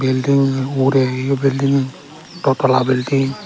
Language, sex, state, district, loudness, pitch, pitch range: Chakma, male, Tripura, Dhalai, -17 LUFS, 135 Hz, 130-140 Hz